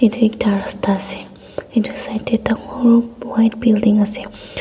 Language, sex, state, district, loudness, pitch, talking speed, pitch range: Nagamese, female, Nagaland, Dimapur, -17 LUFS, 225 Hz, 155 wpm, 215-235 Hz